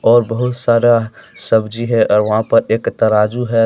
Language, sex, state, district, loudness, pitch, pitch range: Hindi, male, Jharkhand, Deoghar, -14 LUFS, 115 Hz, 110-120 Hz